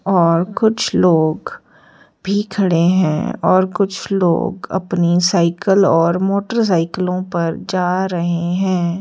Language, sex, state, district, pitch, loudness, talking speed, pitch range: Hindi, female, Uttar Pradesh, Lalitpur, 180 Hz, -16 LUFS, 120 wpm, 170-195 Hz